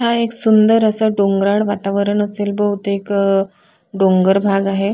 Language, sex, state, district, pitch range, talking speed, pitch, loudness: Marathi, male, Maharashtra, Sindhudurg, 195-215 Hz, 145 wpm, 200 Hz, -15 LUFS